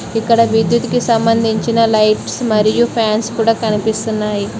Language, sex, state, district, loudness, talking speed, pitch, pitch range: Telugu, female, Telangana, Mahabubabad, -14 LUFS, 115 wpm, 225 Hz, 215-230 Hz